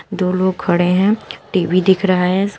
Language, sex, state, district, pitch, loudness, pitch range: Hindi, female, Uttar Pradesh, Shamli, 185 Hz, -16 LUFS, 180-195 Hz